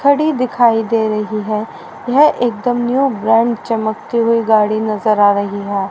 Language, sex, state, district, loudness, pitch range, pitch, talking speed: Hindi, female, Haryana, Rohtak, -15 LUFS, 215-245 Hz, 225 Hz, 165 wpm